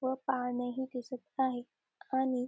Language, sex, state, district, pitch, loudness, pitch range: Marathi, female, Maharashtra, Dhule, 255 Hz, -35 LUFS, 245-265 Hz